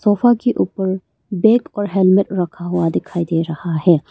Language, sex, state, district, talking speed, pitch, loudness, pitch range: Hindi, female, Arunachal Pradesh, Papum Pare, 175 wpm, 185 Hz, -17 LUFS, 170-205 Hz